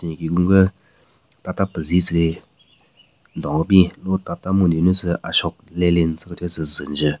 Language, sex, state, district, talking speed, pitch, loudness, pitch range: Rengma, male, Nagaland, Kohima, 175 wpm, 85 Hz, -19 LUFS, 80-95 Hz